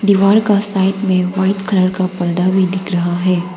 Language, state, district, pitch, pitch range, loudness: Hindi, Arunachal Pradesh, Papum Pare, 190 Hz, 180-195 Hz, -15 LUFS